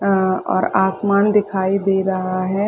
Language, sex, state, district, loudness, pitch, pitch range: Hindi, female, Chhattisgarh, Sarguja, -18 LUFS, 190 Hz, 190-200 Hz